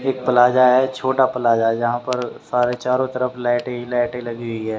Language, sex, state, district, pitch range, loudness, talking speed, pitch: Hindi, male, Haryana, Rohtak, 120-125 Hz, -19 LUFS, 200 wpm, 125 Hz